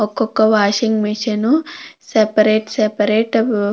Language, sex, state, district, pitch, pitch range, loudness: Telugu, female, Andhra Pradesh, Krishna, 215 Hz, 210-230 Hz, -16 LUFS